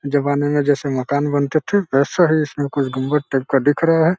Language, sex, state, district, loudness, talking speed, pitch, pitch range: Hindi, male, Uttar Pradesh, Deoria, -18 LUFS, 230 wpm, 145 Hz, 140-155 Hz